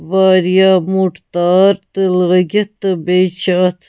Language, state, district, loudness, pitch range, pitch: Kashmiri, Punjab, Kapurthala, -13 LUFS, 180-190 Hz, 185 Hz